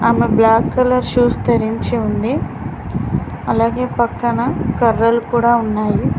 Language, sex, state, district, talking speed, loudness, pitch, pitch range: Telugu, female, Telangana, Mahabubabad, 105 wpm, -16 LUFS, 235 Hz, 225-240 Hz